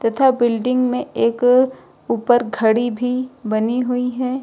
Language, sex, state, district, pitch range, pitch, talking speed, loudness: Hindi, female, Uttar Pradesh, Lucknow, 235-255 Hz, 245 Hz, 150 wpm, -18 LUFS